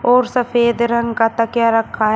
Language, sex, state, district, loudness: Hindi, male, Uttar Pradesh, Shamli, -16 LUFS